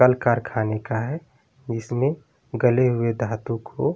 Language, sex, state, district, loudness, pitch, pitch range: Hindi, male, Bihar, Vaishali, -24 LUFS, 120 Hz, 115-130 Hz